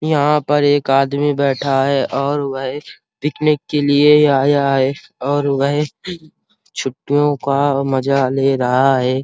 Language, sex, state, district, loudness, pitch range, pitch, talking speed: Hindi, male, Uttar Pradesh, Hamirpur, -16 LUFS, 135-145 Hz, 140 Hz, 145 wpm